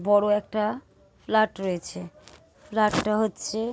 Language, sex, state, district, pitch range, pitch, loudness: Bengali, female, West Bengal, Dakshin Dinajpur, 180-215 Hz, 210 Hz, -25 LUFS